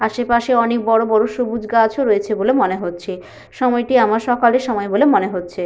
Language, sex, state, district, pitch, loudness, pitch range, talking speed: Bengali, female, West Bengal, Paschim Medinipur, 230 Hz, -16 LUFS, 205-245 Hz, 200 wpm